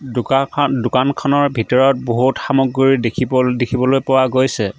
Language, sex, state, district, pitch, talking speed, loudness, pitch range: Assamese, male, Assam, Sonitpur, 130 Hz, 115 wpm, -16 LUFS, 125-135 Hz